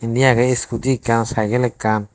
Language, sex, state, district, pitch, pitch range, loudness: Chakma, male, Tripura, Dhalai, 115 Hz, 110-125 Hz, -18 LUFS